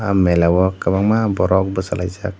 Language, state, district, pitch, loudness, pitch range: Kokborok, Tripura, Dhalai, 95 Hz, -17 LUFS, 90-100 Hz